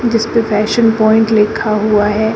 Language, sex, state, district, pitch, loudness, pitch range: Hindi, female, Uttar Pradesh, Shamli, 220 Hz, -12 LUFS, 215-225 Hz